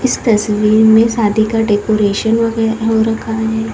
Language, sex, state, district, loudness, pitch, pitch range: Hindi, female, Uttar Pradesh, Lalitpur, -13 LUFS, 220 Hz, 215-225 Hz